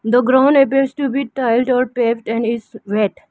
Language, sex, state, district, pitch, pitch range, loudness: English, female, Arunachal Pradesh, Lower Dibang Valley, 245 Hz, 230-270 Hz, -16 LUFS